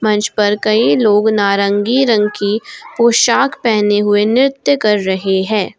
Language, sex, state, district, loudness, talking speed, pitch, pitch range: Hindi, female, Jharkhand, Garhwa, -13 LUFS, 145 wpm, 215 Hz, 205-235 Hz